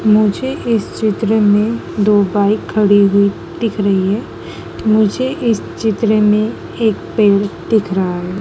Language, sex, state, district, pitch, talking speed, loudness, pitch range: Hindi, female, Madhya Pradesh, Dhar, 210 Hz, 145 wpm, -15 LUFS, 200-220 Hz